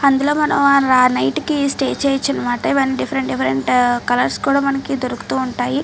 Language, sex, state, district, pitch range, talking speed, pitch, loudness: Telugu, female, Andhra Pradesh, Chittoor, 245-280 Hz, 155 wpm, 265 Hz, -17 LUFS